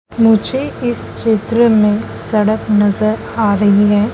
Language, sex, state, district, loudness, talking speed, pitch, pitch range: Hindi, female, Madhya Pradesh, Dhar, -14 LUFS, 130 wpm, 215 Hz, 210-230 Hz